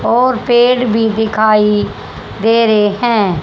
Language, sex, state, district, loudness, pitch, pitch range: Hindi, female, Haryana, Charkhi Dadri, -12 LUFS, 220 Hz, 210-240 Hz